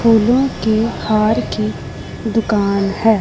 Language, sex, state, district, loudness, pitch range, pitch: Hindi, female, Punjab, Pathankot, -16 LUFS, 215-225 Hz, 220 Hz